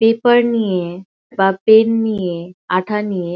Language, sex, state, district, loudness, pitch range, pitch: Bengali, female, West Bengal, Kolkata, -16 LUFS, 180-225 Hz, 200 Hz